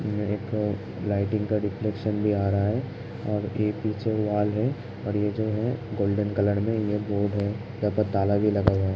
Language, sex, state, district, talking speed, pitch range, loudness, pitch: Hindi, male, Uttar Pradesh, Hamirpur, 210 wpm, 100-110 Hz, -26 LUFS, 105 Hz